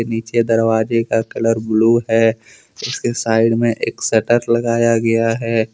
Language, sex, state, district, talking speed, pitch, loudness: Hindi, male, Jharkhand, Deoghar, 145 wpm, 115 Hz, -16 LUFS